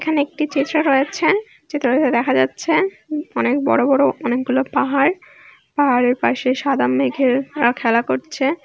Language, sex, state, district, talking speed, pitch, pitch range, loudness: Bengali, female, West Bengal, Malda, 140 wpm, 275 Hz, 255-305 Hz, -18 LUFS